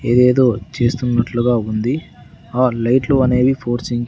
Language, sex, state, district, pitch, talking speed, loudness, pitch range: Telugu, male, Andhra Pradesh, Sri Satya Sai, 120 Hz, 120 wpm, -16 LUFS, 120-130 Hz